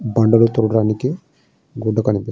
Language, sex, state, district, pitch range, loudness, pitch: Telugu, male, Andhra Pradesh, Srikakulam, 110-125 Hz, -17 LUFS, 115 Hz